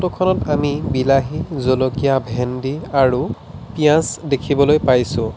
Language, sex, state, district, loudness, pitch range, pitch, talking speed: Assamese, male, Assam, Sonitpur, -18 LUFS, 130-150 Hz, 135 Hz, 100 wpm